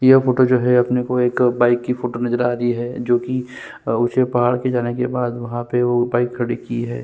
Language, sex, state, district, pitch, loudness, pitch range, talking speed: Hindi, male, Chhattisgarh, Sukma, 120 Hz, -19 LUFS, 120-125 Hz, 245 wpm